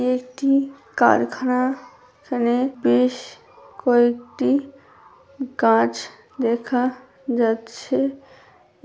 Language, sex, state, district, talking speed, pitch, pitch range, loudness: Bengali, female, West Bengal, Paschim Medinipur, 70 wpm, 255 Hz, 235-270 Hz, -21 LUFS